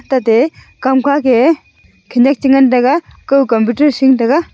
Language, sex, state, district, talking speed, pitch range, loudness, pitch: Wancho, female, Arunachal Pradesh, Longding, 185 wpm, 245-280 Hz, -12 LUFS, 265 Hz